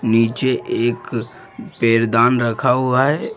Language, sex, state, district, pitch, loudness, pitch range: Hindi, male, Bihar, Jamui, 120 Hz, -17 LUFS, 115-130 Hz